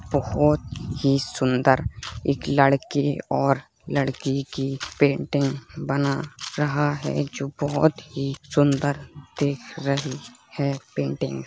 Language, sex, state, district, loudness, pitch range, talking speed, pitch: Hindi, male, Uttar Pradesh, Hamirpur, -24 LUFS, 135-145 Hz, 110 wpm, 140 Hz